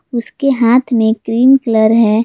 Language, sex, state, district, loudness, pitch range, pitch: Hindi, female, Jharkhand, Garhwa, -12 LUFS, 220-255 Hz, 235 Hz